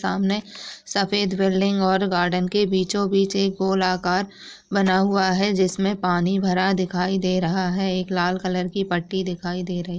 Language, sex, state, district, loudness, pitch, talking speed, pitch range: Hindi, female, Uttar Pradesh, Budaun, -22 LUFS, 190 Hz, 180 wpm, 180-195 Hz